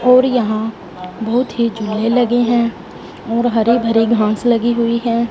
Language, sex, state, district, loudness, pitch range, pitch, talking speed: Hindi, female, Punjab, Fazilka, -16 LUFS, 225-240 Hz, 235 Hz, 160 wpm